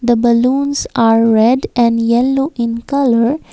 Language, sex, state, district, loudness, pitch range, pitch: English, female, Assam, Kamrup Metropolitan, -13 LUFS, 230-270 Hz, 240 Hz